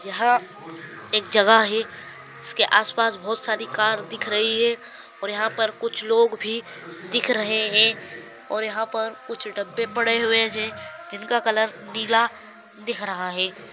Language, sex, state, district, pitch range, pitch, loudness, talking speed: Hindi, male, Maharashtra, Solapur, 210-230 Hz, 220 Hz, -22 LUFS, 155 wpm